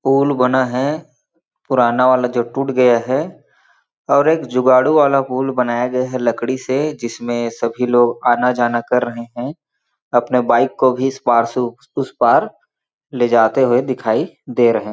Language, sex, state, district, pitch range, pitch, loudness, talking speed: Hindi, male, Chhattisgarh, Balrampur, 120-135 Hz, 125 Hz, -16 LUFS, 170 wpm